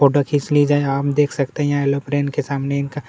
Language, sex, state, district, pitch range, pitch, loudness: Hindi, male, Chhattisgarh, Kabirdham, 140-145 Hz, 145 Hz, -19 LUFS